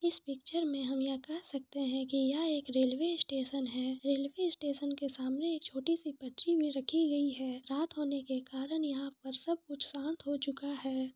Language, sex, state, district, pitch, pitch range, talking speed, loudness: Hindi, female, Jharkhand, Sahebganj, 280 Hz, 265-310 Hz, 210 wpm, -36 LUFS